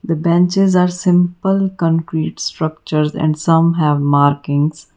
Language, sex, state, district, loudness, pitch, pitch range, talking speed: English, female, Karnataka, Bangalore, -15 LUFS, 165 Hz, 155-180 Hz, 120 wpm